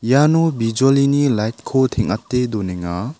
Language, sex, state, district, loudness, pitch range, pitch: Garo, male, Meghalaya, South Garo Hills, -18 LUFS, 110-140 Hz, 125 Hz